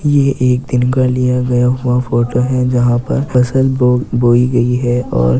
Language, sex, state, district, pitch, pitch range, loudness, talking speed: Hindi, male, Uttar Pradesh, Jyotiba Phule Nagar, 125 Hz, 125-130 Hz, -13 LUFS, 190 wpm